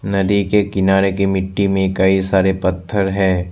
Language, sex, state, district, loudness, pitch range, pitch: Hindi, male, Assam, Sonitpur, -16 LUFS, 95-100 Hz, 95 Hz